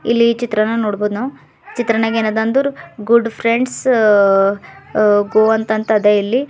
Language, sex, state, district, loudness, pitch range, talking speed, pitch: Kannada, female, Karnataka, Bidar, -15 LUFS, 210-235 Hz, 120 wpm, 220 Hz